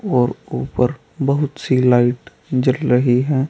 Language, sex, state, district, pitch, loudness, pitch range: Hindi, male, Uttar Pradesh, Saharanpur, 130 Hz, -18 LUFS, 125-140 Hz